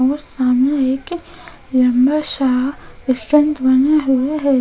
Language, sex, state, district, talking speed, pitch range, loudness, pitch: Hindi, female, Goa, North and South Goa, 80 wpm, 260-300 Hz, -16 LUFS, 270 Hz